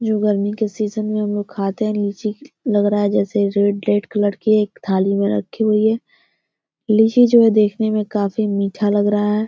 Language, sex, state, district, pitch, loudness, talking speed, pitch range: Hindi, female, Bihar, Gopalganj, 210 Hz, -18 LUFS, 215 wpm, 205-215 Hz